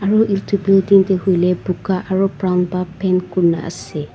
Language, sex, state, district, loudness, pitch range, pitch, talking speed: Nagamese, female, Nagaland, Dimapur, -17 LUFS, 180-195 Hz, 185 Hz, 175 wpm